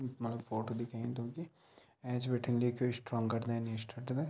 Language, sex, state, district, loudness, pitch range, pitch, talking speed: Garhwali, male, Uttarakhand, Tehri Garhwal, -38 LUFS, 115-125 Hz, 120 Hz, 155 wpm